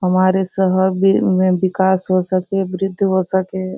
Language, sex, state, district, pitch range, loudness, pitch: Hindi, female, Bihar, Sitamarhi, 185-190 Hz, -16 LUFS, 185 Hz